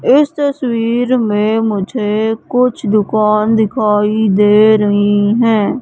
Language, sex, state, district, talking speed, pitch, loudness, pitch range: Hindi, female, Madhya Pradesh, Katni, 105 wpm, 220 Hz, -13 LUFS, 210-235 Hz